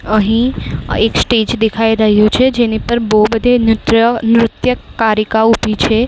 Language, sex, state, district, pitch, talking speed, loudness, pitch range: Gujarati, female, Maharashtra, Mumbai Suburban, 225 Hz, 140 wpm, -12 LUFS, 220-235 Hz